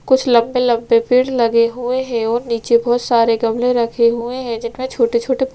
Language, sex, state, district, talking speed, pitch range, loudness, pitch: Hindi, female, Bihar, Vaishali, 215 wpm, 230-250 Hz, -16 LUFS, 235 Hz